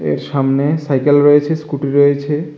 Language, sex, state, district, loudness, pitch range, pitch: Bengali, male, Tripura, West Tripura, -14 LUFS, 140-150 Hz, 145 Hz